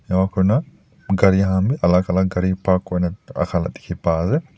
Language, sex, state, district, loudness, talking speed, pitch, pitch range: Nagamese, male, Nagaland, Dimapur, -19 LUFS, 185 wpm, 95 Hz, 90-95 Hz